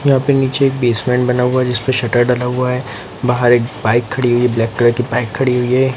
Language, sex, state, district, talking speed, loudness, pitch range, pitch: Hindi, male, Bihar, Lakhisarai, 260 wpm, -15 LUFS, 120-130 Hz, 125 Hz